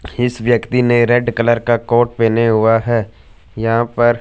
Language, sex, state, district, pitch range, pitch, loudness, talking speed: Hindi, male, Punjab, Fazilka, 115-120 Hz, 120 Hz, -15 LUFS, 170 wpm